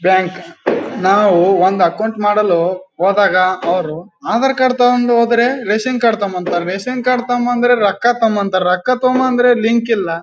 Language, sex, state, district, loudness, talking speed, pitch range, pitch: Kannada, male, Karnataka, Gulbarga, -14 LUFS, 150 wpm, 185-245 Hz, 215 Hz